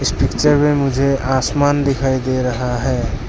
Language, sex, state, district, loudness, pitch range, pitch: Hindi, male, Arunachal Pradesh, Lower Dibang Valley, -16 LUFS, 125-140 Hz, 135 Hz